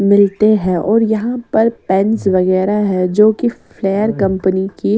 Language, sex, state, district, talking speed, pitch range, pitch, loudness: Hindi, female, Odisha, Sambalpur, 155 wpm, 190-220 Hz, 200 Hz, -14 LUFS